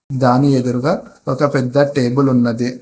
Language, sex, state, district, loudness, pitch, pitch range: Telugu, male, Telangana, Hyderabad, -16 LUFS, 130 Hz, 125-140 Hz